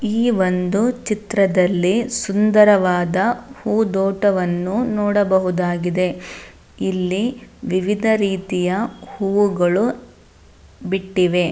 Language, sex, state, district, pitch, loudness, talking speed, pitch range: Kannada, female, Karnataka, Dharwad, 195 Hz, -18 LUFS, 55 wpm, 180-215 Hz